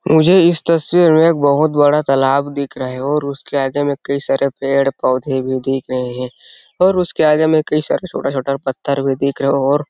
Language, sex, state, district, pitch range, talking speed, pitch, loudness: Hindi, male, Chhattisgarh, Sarguja, 135-155 Hz, 230 wpm, 140 Hz, -15 LUFS